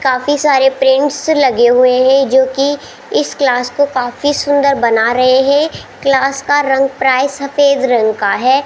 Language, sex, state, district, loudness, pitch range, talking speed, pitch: Hindi, female, Rajasthan, Jaipur, -12 LUFS, 255-280 Hz, 160 wpm, 270 Hz